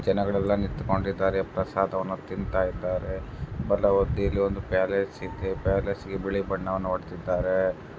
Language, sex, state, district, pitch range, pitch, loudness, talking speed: Kannada, male, Karnataka, Dharwad, 95-100 Hz, 95 Hz, -27 LUFS, 115 wpm